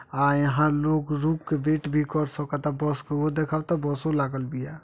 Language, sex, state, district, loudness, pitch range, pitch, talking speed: Bhojpuri, male, Uttar Pradesh, Deoria, -26 LUFS, 145-155 Hz, 150 Hz, 200 wpm